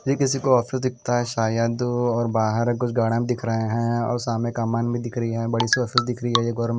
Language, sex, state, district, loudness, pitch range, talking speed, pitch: Hindi, male, Punjab, Kapurthala, -23 LUFS, 115-120 Hz, 195 wpm, 120 Hz